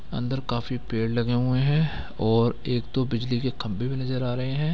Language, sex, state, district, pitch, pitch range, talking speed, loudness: Hindi, male, Bihar, Gaya, 125 Hz, 120-130 Hz, 215 wpm, -26 LUFS